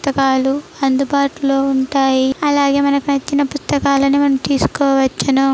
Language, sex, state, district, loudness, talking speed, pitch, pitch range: Telugu, female, Andhra Pradesh, Chittoor, -15 LUFS, 95 wpm, 275 Hz, 270-280 Hz